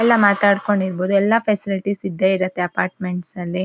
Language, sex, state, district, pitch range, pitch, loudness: Kannada, female, Karnataka, Shimoga, 185-205 Hz, 195 Hz, -19 LUFS